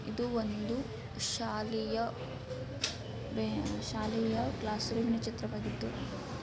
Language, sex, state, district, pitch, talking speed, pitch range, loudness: Kannada, female, Karnataka, Belgaum, 115 Hz, 85 wpm, 110-135 Hz, -36 LUFS